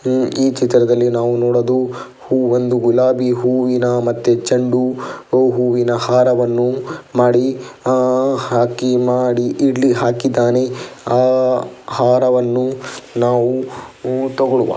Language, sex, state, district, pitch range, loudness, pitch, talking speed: Kannada, male, Karnataka, Dakshina Kannada, 120-130 Hz, -16 LUFS, 125 Hz, 95 wpm